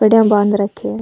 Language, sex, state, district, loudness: Rajasthani, female, Rajasthan, Nagaur, -14 LUFS